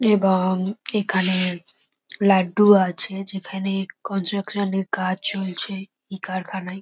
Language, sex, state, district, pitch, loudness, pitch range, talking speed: Bengali, female, West Bengal, North 24 Parganas, 195 Hz, -21 LUFS, 185-200 Hz, 95 wpm